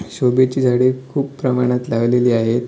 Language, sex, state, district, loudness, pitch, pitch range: Marathi, male, Maharashtra, Sindhudurg, -17 LUFS, 125 Hz, 120-130 Hz